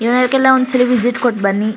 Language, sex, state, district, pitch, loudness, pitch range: Kannada, female, Karnataka, Shimoga, 245 Hz, -14 LUFS, 230-255 Hz